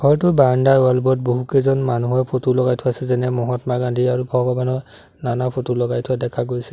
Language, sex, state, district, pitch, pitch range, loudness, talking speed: Assamese, male, Assam, Sonitpur, 125 Hz, 125-130 Hz, -19 LUFS, 185 wpm